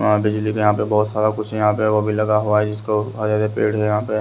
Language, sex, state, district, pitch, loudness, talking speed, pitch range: Hindi, male, Haryana, Rohtak, 105 Hz, -19 LUFS, 315 wpm, 105-110 Hz